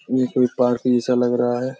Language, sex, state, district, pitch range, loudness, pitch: Hindi, male, Jharkhand, Jamtara, 120-130 Hz, -19 LUFS, 125 Hz